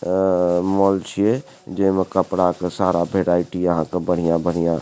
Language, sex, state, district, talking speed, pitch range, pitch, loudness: Maithili, male, Bihar, Supaul, 160 wpm, 85-95 Hz, 90 Hz, -20 LUFS